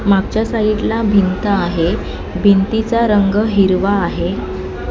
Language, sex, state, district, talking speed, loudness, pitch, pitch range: Marathi, female, Maharashtra, Mumbai Suburban, 100 wpm, -15 LUFS, 200 Hz, 195-220 Hz